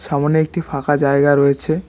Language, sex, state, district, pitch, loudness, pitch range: Bengali, male, West Bengal, Cooch Behar, 145 Hz, -16 LUFS, 140-155 Hz